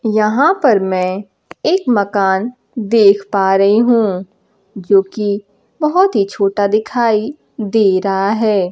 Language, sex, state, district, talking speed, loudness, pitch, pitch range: Hindi, female, Bihar, Kaimur, 115 wpm, -14 LUFS, 205 Hz, 195-225 Hz